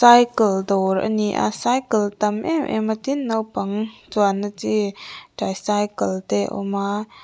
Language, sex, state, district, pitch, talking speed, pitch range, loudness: Mizo, female, Mizoram, Aizawl, 210 Hz, 160 wpm, 200-220 Hz, -21 LUFS